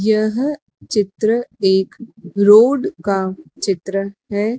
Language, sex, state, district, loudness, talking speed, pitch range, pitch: Hindi, female, Madhya Pradesh, Dhar, -17 LUFS, 90 wpm, 195-225 Hz, 205 Hz